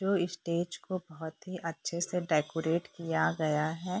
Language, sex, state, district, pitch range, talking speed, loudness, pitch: Hindi, female, Bihar, Purnia, 160-180 Hz, 165 wpm, -33 LUFS, 170 Hz